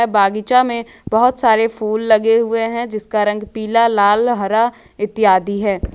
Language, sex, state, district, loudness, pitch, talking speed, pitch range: Hindi, female, Jharkhand, Ranchi, -16 LUFS, 220 Hz, 150 wpm, 210-230 Hz